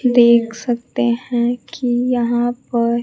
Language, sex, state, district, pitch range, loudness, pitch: Hindi, female, Bihar, Kaimur, 235-245 Hz, -17 LUFS, 240 Hz